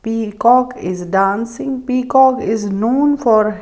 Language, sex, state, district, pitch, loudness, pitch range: English, female, Maharashtra, Mumbai Suburban, 230 Hz, -15 LUFS, 210-255 Hz